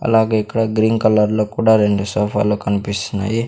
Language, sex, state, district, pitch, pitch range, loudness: Telugu, male, Andhra Pradesh, Sri Satya Sai, 105 Hz, 105-110 Hz, -17 LUFS